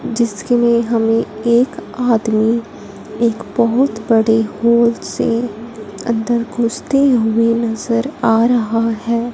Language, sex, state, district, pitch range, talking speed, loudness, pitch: Hindi, female, Punjab, Fazilka, 225-235 Hz, 110 wpm, -16 LUFS, 230 Hz